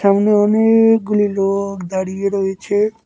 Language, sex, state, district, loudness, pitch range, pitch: Bengali, male, West Bengal, Cooch Behar, -16 LUFS, 195-210 Hz, 200 Hz